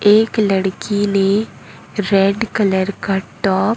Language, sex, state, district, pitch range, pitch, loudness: Hindi, male, Chhattisgarh, Raipur, 195-210 Hz, 200 Hz, -17 LUFS